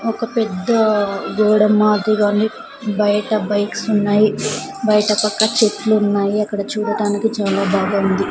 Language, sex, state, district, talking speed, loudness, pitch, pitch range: Telugu, female, Andhra Pradesh, Sri Satya Sai, 130 wpm, -17 LUFS, 210 Hz, 205-215 Hz